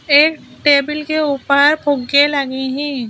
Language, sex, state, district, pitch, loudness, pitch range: Hindi, female, Madhya Pradesh, Bhopal, 285 Hz, -15 LUFS, 280-300 Hz